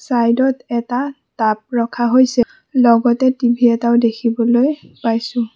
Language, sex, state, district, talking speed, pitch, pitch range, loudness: Assamese, female, Assam, Sonitpur, 120 wpm, 240 Hz, 235-255 Hz, -16 LUFS